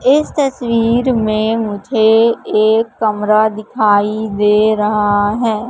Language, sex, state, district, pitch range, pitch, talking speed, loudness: Hindi, female, Madhya Pradesh, Katni, 210-230 Hz, 220 Hz, 105 wpm, -14 LUFS